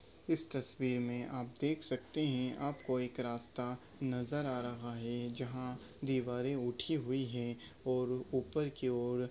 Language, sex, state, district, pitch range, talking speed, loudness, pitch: Hindi, male, Maharashtra, Nagpur, 120-135 Hz, 150 wpm, -39 LUFS, 125 Hz